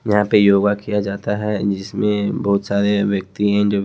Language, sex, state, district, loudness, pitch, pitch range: Hindi, male, Haryana, Charkhi Dadri, -18 LUFS, 100 Hz, 100-105 Hz